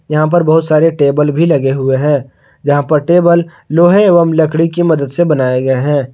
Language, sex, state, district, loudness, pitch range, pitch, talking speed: Hindi, male, Jharkhand, Garhwa, -11 LUFS, 140-170 Hz, 155 Hz, 205 wpm